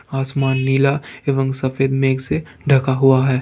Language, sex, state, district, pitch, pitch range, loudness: Hindi, male, Bihar, Jamui, 135 Hz, 130-135 Hz, -18 LUFS